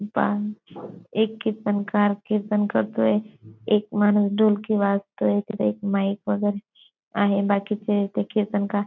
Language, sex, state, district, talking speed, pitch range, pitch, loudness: Marathi, female, Maharashtra, Dhule, 115 wpm, 200-210 Hz, 205 Hz, -23 LUFS